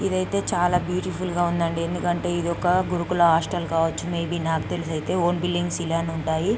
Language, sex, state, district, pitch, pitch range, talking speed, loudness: Telugu, female, Andhra Pradesh, Guntur, 175 Hz, 165-180 Hz, 190 wpm, -24 LUFS